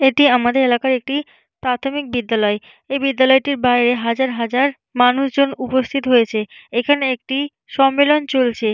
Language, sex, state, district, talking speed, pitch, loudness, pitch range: Bengali, female, West Bengal, Jalpaiguri, 130 wpm, 260 Hz, -17 LUFS, 245-275 Hz